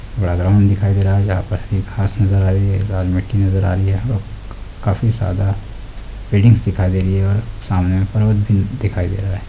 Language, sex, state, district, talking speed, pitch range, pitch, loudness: Hindi, male, Uttar Pradesh, Hamirpur, 215 wpm, 95-105 Hz, 100 Hz, -17 LUFS